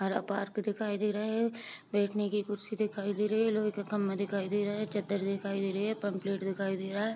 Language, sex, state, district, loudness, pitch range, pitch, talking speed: Hindi, female, Bihar, Sitamarhi, -33 LUFS, 200-210 Hz, 205 Hz, 250 wpm